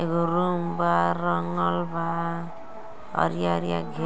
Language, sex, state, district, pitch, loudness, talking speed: Hindi, female, Uttar Pradesh, Ghazipur, 85 Hz, -26 LUFS, 120 wpm